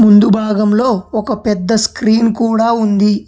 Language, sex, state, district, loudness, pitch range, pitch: Telugu, male, Telangana, Hyderabad, -13 LUFS, 210-225 Hz, 220 Hz